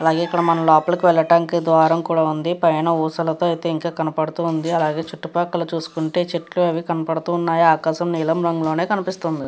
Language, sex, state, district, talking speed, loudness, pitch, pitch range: Telugu, female, Andhra Pradesh, Chittoor, 160 wpm, -19 LUFS, 165 Hz, 160-170 Hz